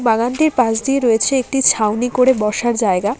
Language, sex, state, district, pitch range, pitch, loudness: Bengali, female, West Bengal, Alipurduar, 220-260 Hz, 240 Hz, -15 LUFS